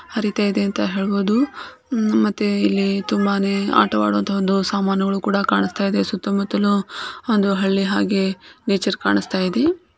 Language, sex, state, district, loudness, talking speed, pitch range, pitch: Kannada, female, Karnataka, Chamarajanagar, -20 LUFS, 115 wpm, 195-210 Hz, 200 Hz